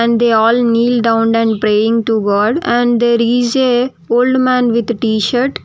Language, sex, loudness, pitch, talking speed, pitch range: English, female, -13 LUFS, 235 Hz, 170 wpm, 225-245 Hz